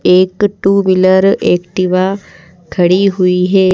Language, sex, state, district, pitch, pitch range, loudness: Hindi, female, Madhya Pradesh, Bhopal, 185 Hz, 180-195 Hz, -11 LUFS